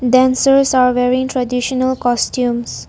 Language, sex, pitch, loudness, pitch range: English, female, 255 Hz, -15 LUFS, 250-260 Hz